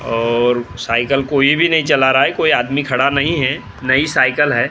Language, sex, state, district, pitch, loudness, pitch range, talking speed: Hindi, male, Maharashtra, Gondia, 130 Hz, -15 LUFS, 120-140 Hz, 205 wpm